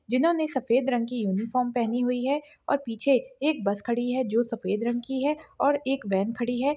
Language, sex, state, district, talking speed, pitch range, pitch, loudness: Hindi, female, Bihar, Saharsa, 210 wpm, 235-275 Hz, 245 Hz, -27 LUFS